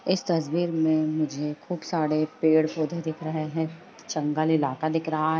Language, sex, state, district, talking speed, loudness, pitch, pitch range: Hindi, male, Bihar, Madhepura, 180 wpm, -26 LUFS, 155 Hz, 155-165 Hz